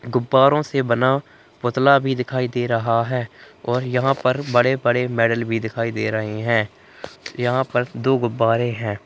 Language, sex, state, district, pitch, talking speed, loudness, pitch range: Hindi, male, Bihar, Purnia, 120 Hz, 160 wpm, -20 LUFS, 115-130 Hz